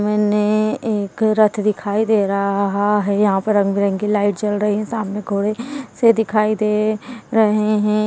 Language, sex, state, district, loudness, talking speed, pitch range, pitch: Hindi, female, Uttarakhand, Tehri Garhwal, -18 LUFS, 170 wpm, 205-215 Hz, 210 Hz